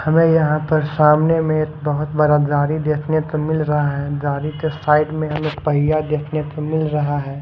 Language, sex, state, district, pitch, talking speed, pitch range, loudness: Hindi, male, Odisha, Khordha, 150 Hz, 200 wpm, 150-155 Hz, -18 LUFS